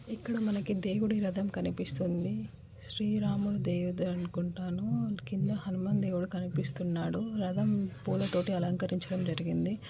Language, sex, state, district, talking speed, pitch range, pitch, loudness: Telugu, female, Andhra Pradesh, Guntur, 105 wpm, 175-200 Hz, 185 Hz, -33 LUFS